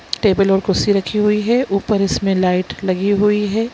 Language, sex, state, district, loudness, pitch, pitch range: Hindi, female, Chhattisgarh, Sukma, -16 LUFS, 200 Hz, 195-210 Hz